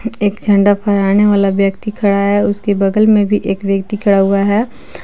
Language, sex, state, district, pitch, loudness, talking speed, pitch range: Hindi, female, Jharkhand, Palamu, 205 Hz, -13 LUFS, 190 wpm, 200-210 Hz